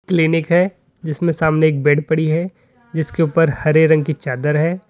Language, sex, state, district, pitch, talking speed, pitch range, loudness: Hindi, male, Uttar Pradesh, Lalitpur, 160 Hz, 185 wpm, 155-170 Hz, -17 LUFS